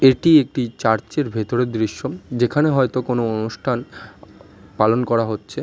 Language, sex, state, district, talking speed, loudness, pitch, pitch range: Bengali, male, West Bengal, North 24 Parganas, 140 wpm, -19 LUFS, 120 Hz, 110-130 Hz